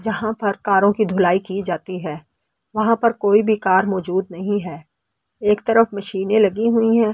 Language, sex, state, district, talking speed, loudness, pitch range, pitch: Hindi, female, Delhi, New Delhi, 185 wpm, -19 LUFS, 185-220 Hz, 200 Hz